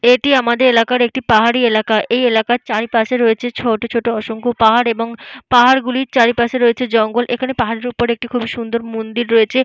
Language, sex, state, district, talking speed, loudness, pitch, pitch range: Bengali, female, Jharkhand, Jamtara, 170 wpm, -15 LUFS, 235 Hz, 230-245 Hz